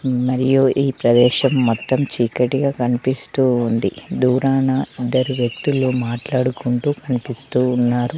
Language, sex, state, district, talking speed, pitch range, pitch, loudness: Telugu, female, Telangana, Mahabubabad, 95 wpm, 120-135 Hz, 125 Hz, -18 LUFS